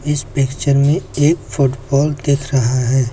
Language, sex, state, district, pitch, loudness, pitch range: Hindi, male, Uttar Pradesh, Lucknow, 140 Hz, -16 LUFS, 130-145 Hz